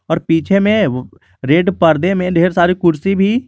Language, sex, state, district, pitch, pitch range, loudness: Hindi, male, Jharkhand, Garhwa, 180 Hz, 165-195 Hz, -14 LUFS